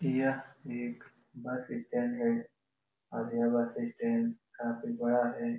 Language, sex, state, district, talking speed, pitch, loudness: Hindi, male, Bihar, Supaul, 130 wpm, 135 Hz, -34 LUFS